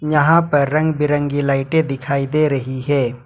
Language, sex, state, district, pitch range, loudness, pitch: Hindi, male, Jharkhand, Ranchi, 135-155 Hz, -17 LUFS, 145 Hz